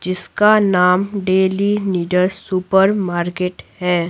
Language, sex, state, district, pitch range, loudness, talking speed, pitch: Hindi, female, Bihar, Patna, 180-200 Hz, -17 LUFS, 90 wpm, 185 Hz